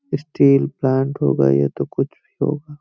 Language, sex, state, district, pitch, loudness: Hindi, male, Uttar Pradesh, Hamirpur, 140 Hz, -19 LUFS